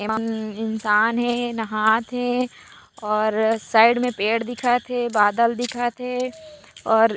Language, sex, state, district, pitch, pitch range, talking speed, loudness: Chhattisgarhi, female, Chhattisgarh, Raigarh, 230 Hz, 220-245 Hz, 135 wpm, -21 LUFS